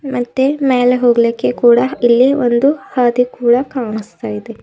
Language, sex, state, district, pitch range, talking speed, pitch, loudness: Kannada, female, Karnataka, Bidar, 235-260 Hz, 130 wpm, 245 Hz, -14 LUFS